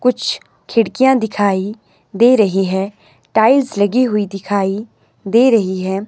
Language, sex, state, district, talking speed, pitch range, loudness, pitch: Hindi, male, Himachal Pradesh, Shimla, 130 wpm, 195-240 Hz, -15 LUFS, 210 Hz